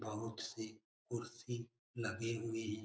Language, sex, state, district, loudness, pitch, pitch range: Hindi, male, Bihar, Jamui, -44 LUFS, 115 Hz, 110-120 Hz